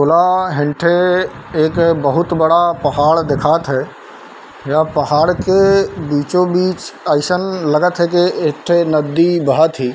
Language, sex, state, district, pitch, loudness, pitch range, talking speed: Chhattisgarhi, male, Chhattisgarh, Bilaspur, 165 Hz, -14 LUFS, 150-175 Hz, 135 wpm